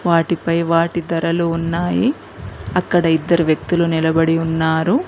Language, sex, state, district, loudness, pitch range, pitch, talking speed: Telugu, female, Telangana, Mahabubabad, -17 LUFS, 165-170 Hz, 165 Hz, 105 wpm